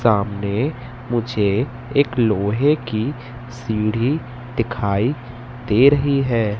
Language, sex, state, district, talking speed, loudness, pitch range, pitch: Hindi, male, Madhya Pradesh, Katni, 90 wpm, -20 LUFS, 110-130 Hz, 120 Hz